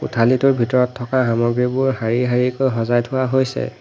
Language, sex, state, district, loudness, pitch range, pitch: Assamese, male, Assam, Hailakandi, -18 LUFS, 120-130 Hz, 125 Hz